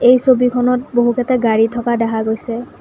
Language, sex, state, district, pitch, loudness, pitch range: Assamese, female, Assam, Kamrup Metropolitan, 240 Hz, -15 LUFS, 230-250 Hz